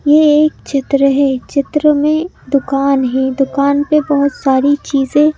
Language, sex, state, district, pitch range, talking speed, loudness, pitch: Hindi, female, Madhya Pradesh, Bhopal, 275-300 Hz, 145 wpm, -13 LUFS, 280 Hz